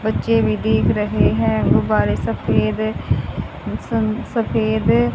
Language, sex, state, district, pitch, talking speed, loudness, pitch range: Hindi, female, Haryana, Charkhi Dadri, 110 Hz, 105 wpm, -19 LUFS, 105-115 Hz